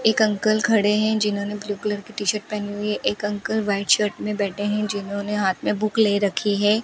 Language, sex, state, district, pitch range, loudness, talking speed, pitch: Hindi, female, Rajasthan, Bikaner, 205-215 Hz, -22 LUFS, 235 wpm, 210 Hz